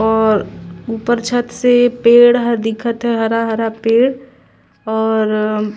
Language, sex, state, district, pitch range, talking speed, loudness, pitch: Surgujia, female, Chhattisgarh, Sarguja, 220-240 Hz, 115 wpm, -14 LUFS, 230 Hz